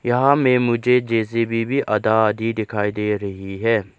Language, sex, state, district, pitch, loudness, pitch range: Hindi, male, Arunachal Pradesh, Lower Dibang Valley, 115 Hz, -19 LUFS, 105-120 Hz